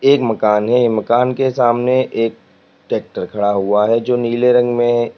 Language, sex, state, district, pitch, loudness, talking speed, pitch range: Hindi, male, Uttar Pradesh, Lalitpur, 120 Hz, -15 LUFS, 175 wpm, 110-125 Hz